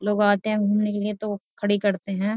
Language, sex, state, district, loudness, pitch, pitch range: Hindi, female, Uttar Pradesh, Jyotiba Phule Nagar, -24 LUFS, 205 Hz, 205-210 Hz